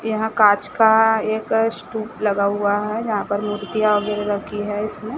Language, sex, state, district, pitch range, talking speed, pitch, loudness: Hindi, male, Maharashtra, Gondia, 205-220 Hz, 175 wpm, 210 Hz, -19 LUFS